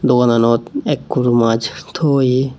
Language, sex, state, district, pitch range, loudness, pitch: Chakma, male, Tripura, Unakoti, 115-130 Hz, -16 LUFS, 125 Hz